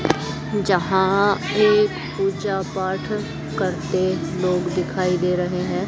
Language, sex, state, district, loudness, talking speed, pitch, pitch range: Hindi, female, Haryana, Charkhi Dadri, -21 LUFS, 100 wpm, 185 Hz, 180-195 Hz